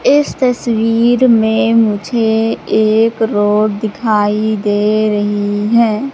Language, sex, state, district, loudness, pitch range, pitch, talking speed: Hindi, female, Madhya Pradesh, Katni, -13 LUFS, 210-230 Hz, 220 Hz, 100 wpm